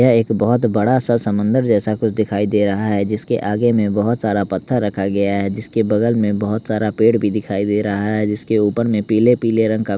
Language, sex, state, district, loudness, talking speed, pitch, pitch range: Hindi, male, Bihar, West Champaran, -17 LUFS, 240 wpm, 110 Hz, 105-115 Hz